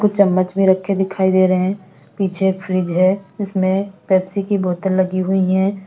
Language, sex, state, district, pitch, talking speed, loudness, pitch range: Hindi, female, Uttar Pradesh, Lalitpur, 190 Hz, 185 wpm, -17 LUFS, 185-195 Hz